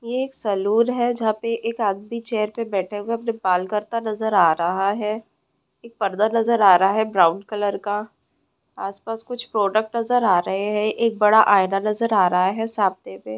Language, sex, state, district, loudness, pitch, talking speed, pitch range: Hindi, female, West Bengal, Purulia, -21 LUFS, 210 Hz, 195 wpm, 195-230 Hz